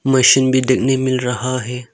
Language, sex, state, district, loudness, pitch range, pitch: Hindi, male, Arunachal Pradesh, Longding, -15 LUFS, 125-130 Hz, 130 Hz